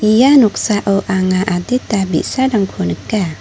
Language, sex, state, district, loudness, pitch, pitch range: Garo, female, Meghalaya, North Garo Hills, -14 LUFS, 200 Hz, 185-220 Hz